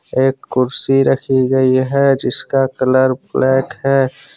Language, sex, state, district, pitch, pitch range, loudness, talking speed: Hindi, male, Jharkhand, Deoghar, 130 Hz, 130-135 Hz, -15 LUFS, 125 wpm